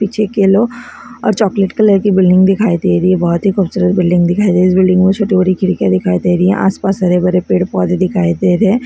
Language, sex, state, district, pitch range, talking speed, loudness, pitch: Hindi, female, Maharashtra, Sindhudurg, 180-200 Hz, 255 wpm, -12 LUFS, 185 Hz